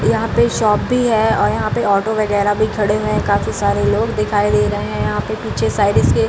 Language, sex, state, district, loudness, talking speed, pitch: Hindi, female, Bihar, Gaya, -16 LUFS, 260 wpm, 205 Hz